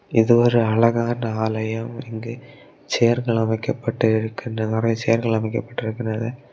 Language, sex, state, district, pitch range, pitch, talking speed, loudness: Tamil, male, Tamil Nadu, Kanyakumari, 110-120 Hz, 115 Hz, 110 wpm, -21 LUFS